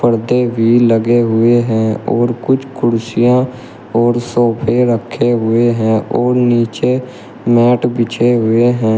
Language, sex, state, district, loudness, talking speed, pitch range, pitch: Hindi, male, Uttar Pradesh, Shamli, -13 LUFS, 125 wpm, 115-120 Hz, 120 Hz